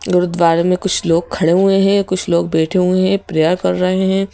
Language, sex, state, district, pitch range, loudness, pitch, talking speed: Hindi, female, Madhya Pradesh, Bhopal, 170-190 Hz, -15 LUFS, 180 Hz, 220 wpm